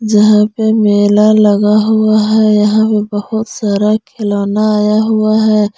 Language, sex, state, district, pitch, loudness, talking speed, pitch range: Hindi, female, Jharkhand, Garhwa, 215 Hz, -11 LUFS, 145 wpm, 210-220 Hz